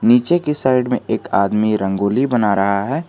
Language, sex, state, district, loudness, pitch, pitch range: Hindi, male, Jharkhand, Garhwa, -17 LUFS, 125 Hz, 100-150 Hz